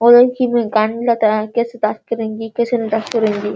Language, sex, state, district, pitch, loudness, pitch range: Hindi, female, Bihar, Sitamarhi, 225 Hz, -16 LUFS, 215-235 Hz